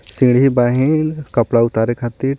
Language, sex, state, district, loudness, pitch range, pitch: Bhojpuri, male, Jharkhand, Palamu, -15 LUFS, 120-135 Hz, 125 Hz